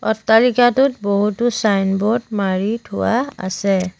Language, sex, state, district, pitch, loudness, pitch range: Assamese, female, Assam, Sonitpur, 215 Hz, -17 LUFS, 200-235 Hz